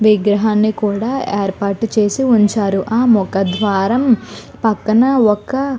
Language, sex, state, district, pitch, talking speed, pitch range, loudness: Telugu, female, Andhra Pradesh, Guntur, 215 Hz, 105 wpm, 205-235 Hz, -15 LUFS